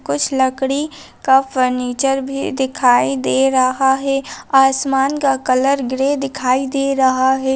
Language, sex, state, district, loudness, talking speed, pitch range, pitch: Hindi, female, Bihar, Darbhanga, -16 LUFS, 135 wpm, 255-275 Hz, 265 Hz